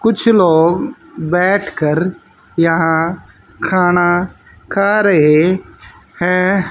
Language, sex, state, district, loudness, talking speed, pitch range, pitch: Hindi, female, Haryana, Jhajjar, -14 LUFS, 80 wpm, 165-190 Hz, 180 Hz